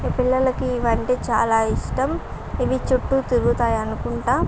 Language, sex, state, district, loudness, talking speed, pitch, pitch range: Telugu, female, Andhra Pradesh, Visakhapatnam, -21 LUFS, 145 wpm, 250 Hz, 230-255 Hz